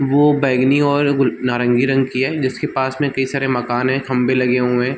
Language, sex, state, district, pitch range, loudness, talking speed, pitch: Hindi, male, Chhattisgarh, Balrampur, 125-140 Hz, -17 LUFS, 230 wpm, 130 Hz